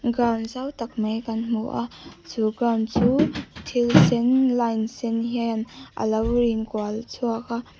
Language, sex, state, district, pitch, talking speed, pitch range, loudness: Mizo, female, Mizoram, Aizawl, 230 Hz, 145 wpm, 225-240 Hz, -23 LUFS